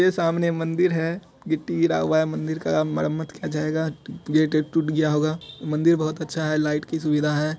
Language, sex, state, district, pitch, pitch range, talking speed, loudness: Hindi, male, Bihar, Supaul, 155 Hz, 150-165 Hz, 215 wpm, -23 LUFS